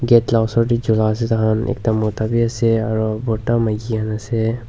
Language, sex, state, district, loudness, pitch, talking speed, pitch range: Nagamese, male, Nagaland, Dimapur, -18 LUFS, 115 Hz, 190 wpm, 110-115 Hz